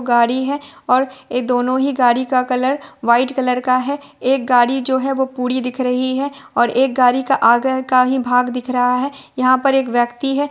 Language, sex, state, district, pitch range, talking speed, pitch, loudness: Hindi, female, Chhattisgarh, Bilaspur, 250-270 Hz, 215 wpm, 255 Hz, -17 LUFS